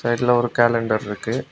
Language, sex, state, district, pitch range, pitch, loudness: Tamil, male, Tamil Nadu, Kanyakumari, 110-120 Hz, 120 Hz, -20 LUFS